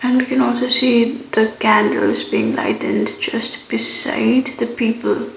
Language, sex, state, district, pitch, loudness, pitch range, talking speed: English, female, Sikkim, Gangtok, 250 Hz, -17 LUFS, 235-260 Hz, 145 wpm